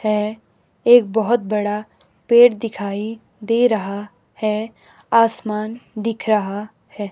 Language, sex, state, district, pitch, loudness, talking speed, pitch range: Hindi, female, Himachal Pradesh, Shimla, 215 Hz, -19 LUFS, 110 wpm, 210-230 Hz